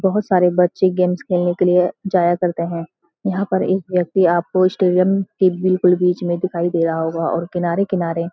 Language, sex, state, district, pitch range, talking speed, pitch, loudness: Hindi, female, Uttarakhand, Uttarkashi, 175-185 Hz, 195 wpm, 180 Hz, -18 LUFS